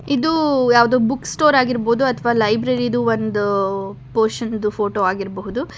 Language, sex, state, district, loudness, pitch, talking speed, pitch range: Kannada, female, Karnataka, Bangalore, -18 LUFS, 235 Hz, 135 wpm, 210-255 Hz